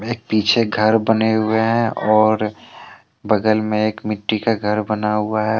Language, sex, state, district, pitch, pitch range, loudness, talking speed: Hindi, male, Jharkhand, Deoghar, 110 Hz, 105-110 Hz, -18 LUFS, 170 wpm